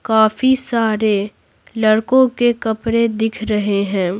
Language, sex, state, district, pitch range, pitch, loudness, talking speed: Hindi, female, Bihar, Patna, 210-230 Hz, 220 Hz, -16 LUFS, 115 wpm